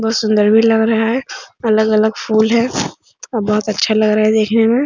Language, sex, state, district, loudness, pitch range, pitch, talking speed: Hindi, female, Bihar, Supaul, -14 LUFS, 215-230 Hz, 220 Hz, 210 wpm